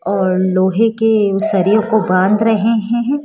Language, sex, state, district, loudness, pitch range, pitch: Hindi, female, Rajasthan, Jaipur, -14 LUFS, 190-225 Hz, 215 Hz